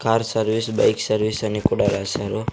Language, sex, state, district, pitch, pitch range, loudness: Telugu, male, Andhra Pradesh, Sri Satya Sai, 110 Hz, 105-115 Hz, -21 LUFS